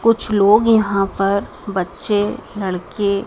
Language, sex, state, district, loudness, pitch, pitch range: Hindi, female, Madhya Pradesh, Dhar, -17 LUFS, 200 Hz, 195-215 Hz